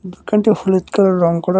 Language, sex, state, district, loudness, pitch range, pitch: Bengali, male, West Bengal, Cooch Behar, -15 LUFS, 180-200 Hz, 190 Hz